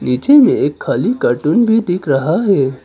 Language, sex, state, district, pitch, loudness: Hindi, male, Arunachal Pradesh, Papum Pare, 180 Hz, -13 LUFS